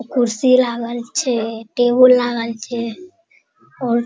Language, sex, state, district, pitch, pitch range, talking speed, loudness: Maithili, female, Bihar, Araria, 245 Hz, 235-255 Hz, 120 wpm, -17 LUFS